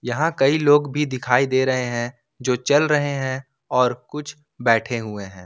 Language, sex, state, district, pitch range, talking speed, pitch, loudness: Hindi, male, Jharkhand, Ranchi, 120-145 Hz, 185 wpm, 130 Hz, -21 LUFS